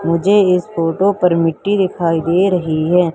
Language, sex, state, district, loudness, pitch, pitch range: Hindi, female, Madhya Pradesh, Umaria, -15 LUFS, 180 Hz, 165-190 Hz